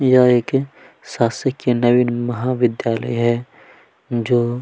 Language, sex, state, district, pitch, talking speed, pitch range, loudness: Hindi, male, Chhattisgarh, Kabirdham, 120 Hz, 90 wpm, 120-125 Hz, -18 LUFS